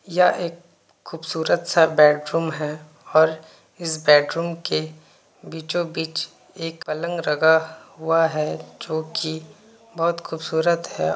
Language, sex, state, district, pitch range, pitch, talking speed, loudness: Hindi, male, Uttar Pradesh, Varanasi, 155-170 Hz, 160 Hz, 115 wpm, -21 LUFS